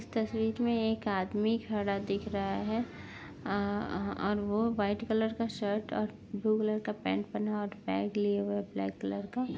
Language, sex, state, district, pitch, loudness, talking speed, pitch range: Hindi, female, Uttar Pradesh, Jyotiba Phule Nagar, 210 Hz, -33 LUFS, 200 wpm, 195-220 Hz